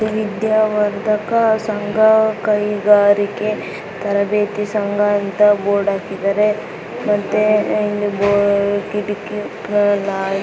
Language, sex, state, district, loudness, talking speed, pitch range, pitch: Kannada, female, Karnataka, Mysore, -17 LUFS, 65 wpm, 205-215 Hz, 210 Hz